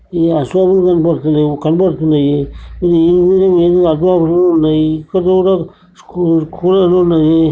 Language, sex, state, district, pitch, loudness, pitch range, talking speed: Telugu, male, Telangana, Nalgonda, 170 Hz, -12 LUFS, 160-180 Hz, 65 wpm